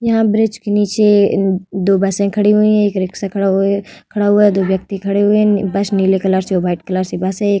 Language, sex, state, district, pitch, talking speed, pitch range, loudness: Hindi, female, Bihar, Vaishali, 200 Hz, 235 wpm, 190-205 Hz, -15 LUFS